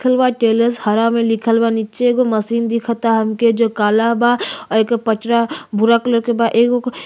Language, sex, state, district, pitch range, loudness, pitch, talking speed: Bhojpuri, female, Uttar Pradesh, Ghazipur, 225-235 Hz, -16 LUFS, 230 Hz, 195 wpm